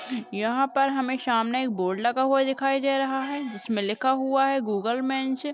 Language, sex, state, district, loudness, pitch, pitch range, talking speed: Hindi, female, Chhattisgarh, Bastar, -25 LUFS, 260 Hz, 235-270 Hz, 205 wpm